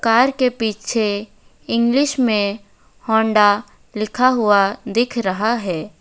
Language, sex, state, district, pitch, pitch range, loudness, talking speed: Hindi, female, West Bengal, Alipurduar, 220 Hz, 205-240 Hz, -18 LUFS, 110 wpm